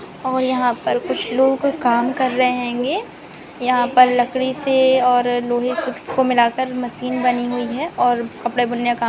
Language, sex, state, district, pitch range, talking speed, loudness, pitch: Hindi, female, Chhattisgarh, Korba, 245-260 Hz, 170 wpm, -18 LUFS, 250 Hz